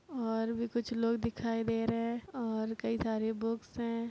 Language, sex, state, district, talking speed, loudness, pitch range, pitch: Hindi, female, Uttar Pradesh, Etah, 205 wpm, -35 LUFS, 225-235 Hz, 230 Hz